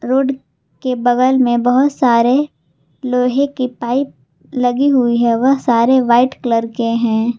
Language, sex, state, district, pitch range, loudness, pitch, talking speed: Hindi, female, Jharkhand, Garhwa, 235-265 Hz, -15 LUFS, 250 Hz, 145 wpm